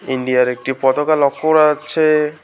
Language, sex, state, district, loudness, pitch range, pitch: Bengali, male, West Bengal, Alipurduar, -15 LUFS, 130-155 Hz, 150 Hz